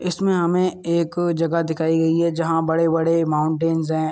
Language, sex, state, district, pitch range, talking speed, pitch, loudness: Hindi, male, Uttar Pradesh, Muzaffarnagar, 160-170 Hz, 175 wpm, 165 Hz, -20 LUFS